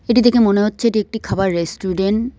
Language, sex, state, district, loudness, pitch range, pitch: Bengali, female, West Bengal, Cooch Behar, -17 LUFS, 195-235 Hz, 215 Hz